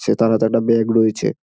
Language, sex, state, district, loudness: Bengali, male, West Bengal, Dakshin Dinajpur, -16 LUFS